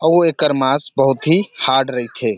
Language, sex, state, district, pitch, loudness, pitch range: Chhattisgarhi, male, Chhattisgarh, Rajnandgaon, 140 Hz, -15 LUFS, 135-160 Hz